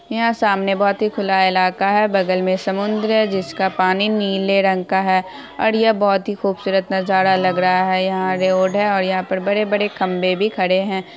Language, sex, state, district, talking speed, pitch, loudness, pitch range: Hindi, female, Bihar, Araria, 200 wpm, 195 Hz, -18 LUFS, 185-205 Hz